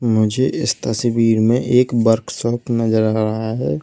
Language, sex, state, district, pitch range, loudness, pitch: Hindi, male, Uttar Pradesh, Lalitpur, 110-120 Hz, -17 LUFS, 115 Hz